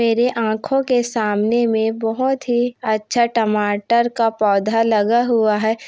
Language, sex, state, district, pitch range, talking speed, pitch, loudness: Hindi, female, Chhattisgarh, Korba, 215-240 Hz, 145 wpm, 225 Hz, -18 LUFS